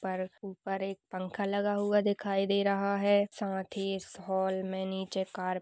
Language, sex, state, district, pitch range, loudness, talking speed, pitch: Hindi, female, Uttar Pradesh, Budaun, 190-200 Hz, -32 LUFS, 190 wpm, 195 Hz